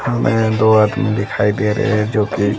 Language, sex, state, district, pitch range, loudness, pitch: Hindi, female, Himachal Pradesh, Shimla, 105-110 Hz, -16 LUFS, 105 Hz